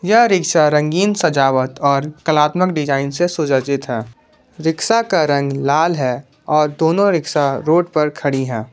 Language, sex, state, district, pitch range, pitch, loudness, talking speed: Hindi, male, Jharkhand, Ranchi, 140-170 Hz, 150 Hz, -16 LUFS, 150 wpm